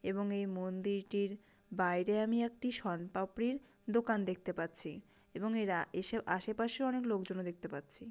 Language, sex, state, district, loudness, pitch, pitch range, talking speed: Bengali, female, West Bengal, Dakshin Dinajpur, -37 LUFS, 200 Hz, 185-230 Hz, 140 wpm